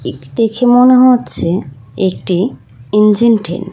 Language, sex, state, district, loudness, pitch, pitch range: Bengali, female, West Bengal, Kolkata, -12 LUFS, 205 Hz, 170-235 Hz